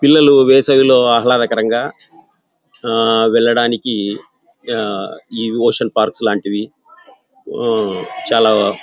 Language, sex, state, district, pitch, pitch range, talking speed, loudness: Telugu, male, Andhra Pradesh, Anantapur, 120 Hz, 115-145 Hz, 80 wpm, -14 LUFS